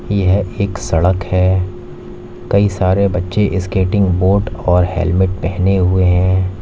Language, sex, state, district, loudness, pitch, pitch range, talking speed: Hindi, male, Uttar Pradesh, Lalitpur, -15 LUFS, 95 Hz, 90-100 Hz, 125 wpm